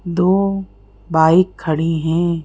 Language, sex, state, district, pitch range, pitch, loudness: Hindi, female, Madhya Pradesh, Bhopal, 160-185 Hz, 175 Hz, -17 LUFS